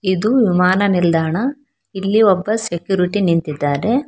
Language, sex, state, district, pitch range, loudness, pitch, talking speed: Kannada, female, Karnataka, Bangalore, 175-220 Hz, -16 LUFS, 190 Hz, 105 wpm